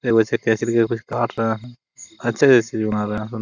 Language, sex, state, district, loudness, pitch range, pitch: Hindi, male, Jharkhand, Jamtara, -20 LUFS, 110-120 Hz, 115 Hz